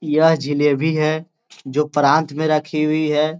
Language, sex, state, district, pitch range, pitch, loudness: Hindi, male, Bihar, Gaya, 150-155 Hz, 155 Hz, -18 LUFS